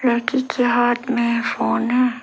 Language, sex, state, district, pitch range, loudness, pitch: Hindi, female, Arunachal Pradesh, Lower Dibang Valley, 235-250 Hz, -19 LUFS, 240 Hz